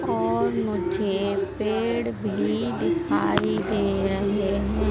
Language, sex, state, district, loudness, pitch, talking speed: Hindi, female, Madhya Pradesh, Dhar, -25 LUFS, 195 Hz, 100 wpm